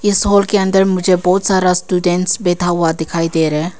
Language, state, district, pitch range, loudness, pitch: Hindi, Arunachal Pradesh, Papum Pare, 175-195 Hz, -14 LUFS, 180 Hz